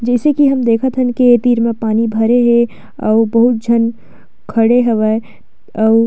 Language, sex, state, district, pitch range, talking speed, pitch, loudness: Chhattisgarhi, female, Chhattisgarh, Sukma, 225-245 Hz, 180 wpm, 230 Hz, -13 LUFS